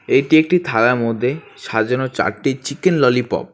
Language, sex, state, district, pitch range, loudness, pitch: Bengali, male, West Bengal, Alipurduar, 125-145 Hz, -17 LUFS, 130 Hz